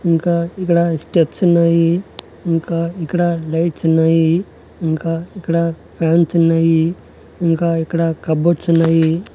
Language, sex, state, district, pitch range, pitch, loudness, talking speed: Telugu, male, Andhra Pradesh, Annamaya, 165-170 Hz, 165 Hz, -16 LUFS, 105 wpm